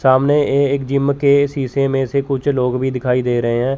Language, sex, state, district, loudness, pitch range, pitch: Hindi, male, Chandigarh, Chandigarh, -16 LUFS, 130-140 Hz, 135 Hz